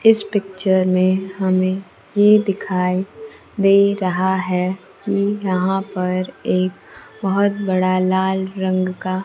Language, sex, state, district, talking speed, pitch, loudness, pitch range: Hindi, female, Bihar, Kaimur, 115 wpm, 190 Hz, -19 LUFS, 185-200 Hz